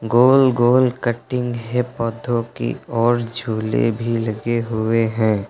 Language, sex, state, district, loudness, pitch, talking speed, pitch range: Hindi, male, Uttar Pradesh, Lucknow, -19 LUFS, 115 Hz, 130 wpm, 115-120 Hz